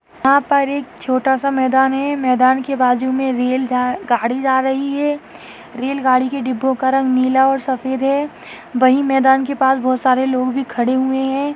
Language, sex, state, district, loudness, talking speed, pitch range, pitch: Hindi, female, Maharashtra, Aurangabad, -16 LUFS, 190 wpm, 255-275 Hz, 265 Hz